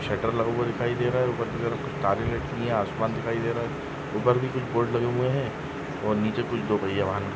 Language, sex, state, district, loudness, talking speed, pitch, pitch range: Hindi, male, Chhattisgarh, Rajnandgaon, -27 LUFS, 270 wpm, 120 Hz, 115-130 Hz